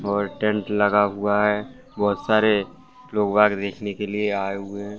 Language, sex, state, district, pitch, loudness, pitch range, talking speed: Hindi, male, Bihar, Saran, 105 Hz, -22 LUFS, 100-105 Hz, 180 wpm